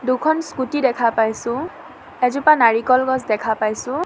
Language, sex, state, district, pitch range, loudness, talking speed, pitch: Assamese, female, Assam, Sonitpur, 230-265 Hz, -18 LUFS, 135 wpm, 255 Hz